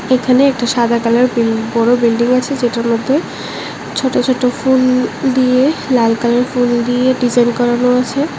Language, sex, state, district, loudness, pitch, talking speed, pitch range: Bengali, male, Tripura, West Tripura, -14 LUFS, 245 Hz, 150 wpm, 235-255 Hz